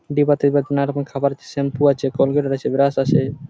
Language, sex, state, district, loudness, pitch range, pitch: Bengali, male, West Bengal, Paschim Medinipur, -19 LUFS, 140-145 Hz, 140 Hz